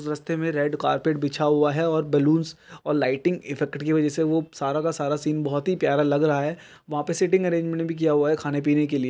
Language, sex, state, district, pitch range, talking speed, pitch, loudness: Hindi, male, Chhattisgarh, Bilaspur, 145-165 Hz, 235 wpm, 150 Hz, -24 LUFS